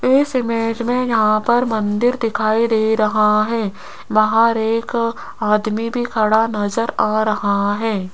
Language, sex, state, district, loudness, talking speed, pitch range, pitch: Hindi, female, Rajasthan, Jaipur, -17 LUFS, 140 wpm, 215-230 Hz, 220 Hz